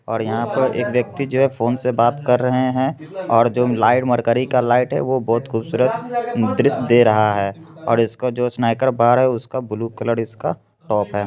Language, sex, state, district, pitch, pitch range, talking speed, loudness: Hindi, male, Bihar, Begusarai, 125 Hz, 115-130 Hz, 200 wpm, -18 LUFS